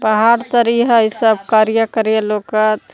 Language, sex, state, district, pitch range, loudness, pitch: Magahi, female, Jharkhand, Palamu, 215-230 Hz, -14 LUFS, 220 Hz